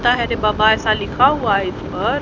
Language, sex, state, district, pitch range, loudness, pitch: Hindi, female, Haryana, Rohtak, 215-235 Hz, -17 LUFS, 220 Hz